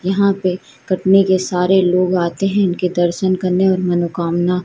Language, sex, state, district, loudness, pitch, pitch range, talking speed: Hindi, female, Madhya Pradesh, Katni, -16 LUFS, 185 Hz, 180-190 Hz, 170 wpm